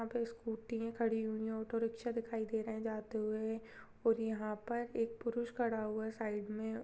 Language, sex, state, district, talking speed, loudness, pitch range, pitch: Hindi, female, Chhattisgarh, Jashpur, 210 wpm, -39 LUFS, 220-230 Hz, 225 Hz